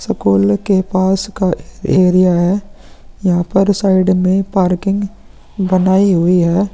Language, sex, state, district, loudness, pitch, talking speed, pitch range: Hindi, male, Bihar, Vaishali, -14 LUFS, 185 Hz, 125 wpm, 180-195 Hz